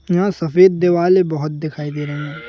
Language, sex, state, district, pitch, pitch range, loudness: Hindi, male, Madhya Pradesh, Bhopal, 165 Hz, 150-180 Hz, -16 LUFS